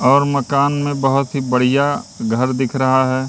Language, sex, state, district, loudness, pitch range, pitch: Hindi, male, Madhya Pradesh, Katni, -17 LUFS, 130-140 Hz, 135 Hz